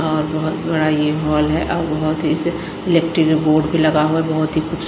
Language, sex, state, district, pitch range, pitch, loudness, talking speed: Hindi, female, Himachal Pradesh, Shimla, 155-160 Hz, 155 Hz, -17 LUFS, 220 wpm